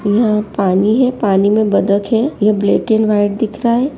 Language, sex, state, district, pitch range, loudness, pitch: Hindi, female, Uttar Pradesh, Jyotiba Phule Nagar, 205-225 Hz, -14 LUFS, 215 Hz